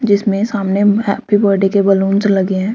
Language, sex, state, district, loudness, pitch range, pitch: Hindi, female, Haryana, Rohtak, -14 LUFS, 195-205 Hz, 200 Hz